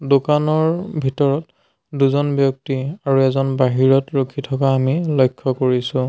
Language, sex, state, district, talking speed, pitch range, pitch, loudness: Assamese, male, Assam, Sonitpur, 120 wpm, 135-145 Hz, 135 Hz, -18 LUFS